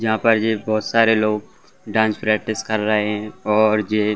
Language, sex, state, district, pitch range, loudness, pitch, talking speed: Hindi, male, Jharkhand, Jamtara, 105-110 Hz, -19 LUFS, 110 Hz, 200 wpm